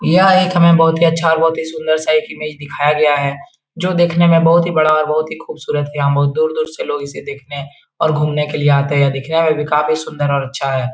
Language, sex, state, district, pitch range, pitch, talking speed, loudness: Hindi, male, Bihar, Jahanabad, 145-160 Hz, 155 Hz, 285 wpm, -15 LUFS